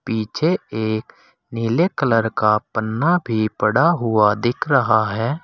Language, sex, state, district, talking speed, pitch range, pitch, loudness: Hindi, male, Uttar Pradesh, Saharanpur, 130 wpm, 110-145 Hz, 115 Hz, -19 LUFS